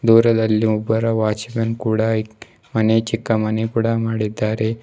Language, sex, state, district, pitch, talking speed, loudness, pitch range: Kannada, male, Karnataka, Bidar, 110 Hz, 125 wpm, -19 LUFS, 110-115 Hz